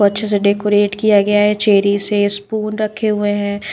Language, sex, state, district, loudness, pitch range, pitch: Hindi, female, Bihar, Kaimur, -15 LUFS, 205-215 Hz, 205 Hz